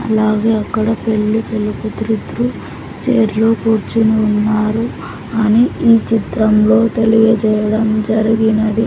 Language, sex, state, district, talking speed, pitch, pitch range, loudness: Telugu, female, Andhra Pradesh, Sri Satya Sai, 95 wpm, 220 Hz, 215-225 Hz, -14 LUFS